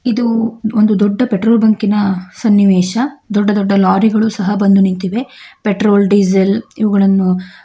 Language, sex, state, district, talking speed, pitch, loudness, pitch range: Kannada, female, Karnataka, Chamarajanagar, 125 wpm, 205 Hz, -13 LUFS, 195-220 Hz